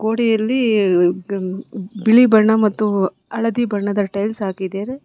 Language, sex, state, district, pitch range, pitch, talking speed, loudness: Kannada, female, Karnataka, Bangalore, 195-225 Hz, 210 Hz, 105 wpm, -17 LUFS